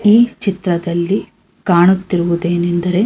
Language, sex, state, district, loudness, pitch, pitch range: Kannada, female, Karnataka, Dharwad, -15 LUFS, 175 Hz, 175-200 Hz